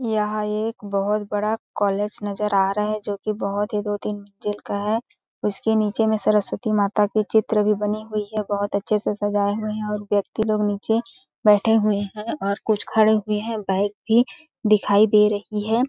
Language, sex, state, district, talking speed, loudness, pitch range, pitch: Hindi, female, Chhattisgarh, Balrampur, 200 wpm, -22 LUFS, 205-215 Hz, 210 Hz